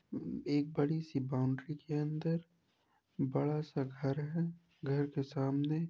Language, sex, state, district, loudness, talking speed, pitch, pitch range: Hindi, male, Uttar Pradesh, Jyotiba Phule Nagar, -37 LUFS, 140 wpm, 150 Hz, 140-160 Hz